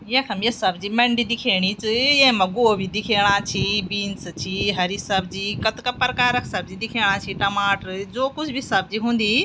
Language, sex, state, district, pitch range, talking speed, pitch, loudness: Garhwali, female, Uttarakhand, Tehri Garhwal, 195-240 Hz, 165 wpm, 210 Hz, -21 LUFS